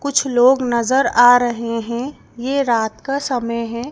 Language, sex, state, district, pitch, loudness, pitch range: Hindi, female, Madhya Pradesh, Bhopal, 245 Hz, -17 LUFS, 235-270 Hz